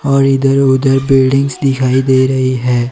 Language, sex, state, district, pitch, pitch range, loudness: Hindi, male, Himachal Pradesh, Shimla, 135 Hz, 130-135 Hz, -12 LUFS